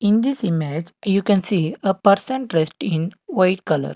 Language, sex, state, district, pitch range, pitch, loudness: English, male, Karnataka, Bangalore, 165-205 Hz, 190 Hz, -20 LUFS